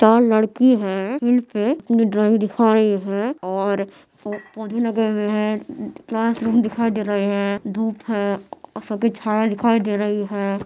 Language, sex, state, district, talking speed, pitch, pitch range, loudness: Hindi, female, Bihar, Madhepura, 165 wpm, 215 Hz, 205-230 Hz, -20 LUFS